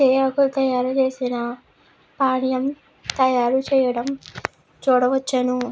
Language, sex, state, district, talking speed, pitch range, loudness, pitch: Telugu, female, Andhra Pradesh, Krishna, 75 wpm, 250-270 Hz, -21 LUFS, 260 Hz